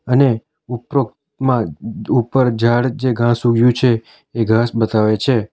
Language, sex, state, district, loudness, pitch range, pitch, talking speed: Gujarati, male, Gujarat, Valsad, -16 LUFS, 115-130 Hz, 120 Hz, 130 wpm